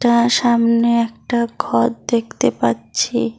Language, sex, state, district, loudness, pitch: Bengali, female, West Bengal, Cooch Behar, -17 LUFS, 230 Hz